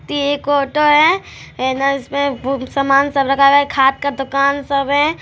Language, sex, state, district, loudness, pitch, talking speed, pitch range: Hindi, female, Bihar, Araria, -15 LUFS, 280 Hz, 185 wpm, 275-285 Hz